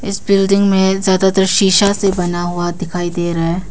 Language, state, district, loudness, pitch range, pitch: Hindi, Arunachal Pradesh, Papum Pare, -14 LUFS, 175-195 Hz, 190 Hz